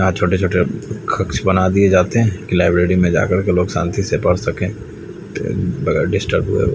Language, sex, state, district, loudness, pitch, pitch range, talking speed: Hindi, male, Haryana, Charkhi Dadri, -17 LUFS, 90 Hz, 90-95 Hz, 180 wpm